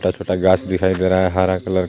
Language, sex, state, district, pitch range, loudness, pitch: Hindi, male, Jharkhand, Garhwa, 90-95 Hz, -17 LUFS, 95 Hz